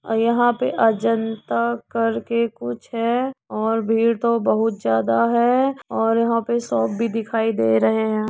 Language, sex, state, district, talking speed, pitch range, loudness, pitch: Hindi, female, Uttar Pradesh, Budaun, 165 wpm, 215-235 Hz, -20 LUFS, 225 Hz